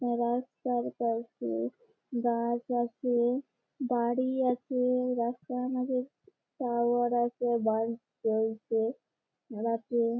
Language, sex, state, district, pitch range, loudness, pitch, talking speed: Bengali, female, West Bengal, Malda, 230-250 Hz, -31 LUFS, 240 Hz, 75 wpm